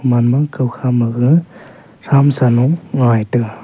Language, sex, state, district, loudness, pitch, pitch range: Wancho, male, Arunachal Pradesh, Longding, -14 LUFS, 125 Hz, 120-140 Hz